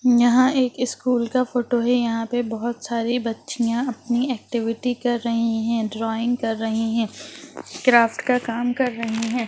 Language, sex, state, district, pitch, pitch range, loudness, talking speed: Hindi, female, Bihar, Jahanabad, 235 Hz, 230-245 Hz, -22 LUFS, 185 wpm